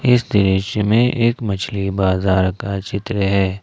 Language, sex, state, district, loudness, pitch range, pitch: Hindi, male, Jharkhand, Ranchi, -18 LUFS, 95-115 Hz, 100 Hz